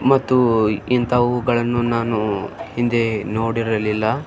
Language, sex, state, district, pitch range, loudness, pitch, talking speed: Kannada, male, Karnataka, Belgaum, 110-120 Hz, -19 LUFS, 115 Hz, 85 wpm